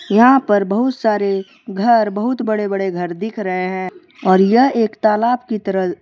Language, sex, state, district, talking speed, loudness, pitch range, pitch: Hindi, male, Jharkhand, Deoghar, 180 wpm, -16 LUFS, 195-235 Hz, 210 Hz